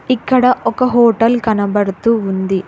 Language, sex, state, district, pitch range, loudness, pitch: Telugu, female, Telangana, Hyderabad, 200-245 Hz, -14 LUFS, 230 Hz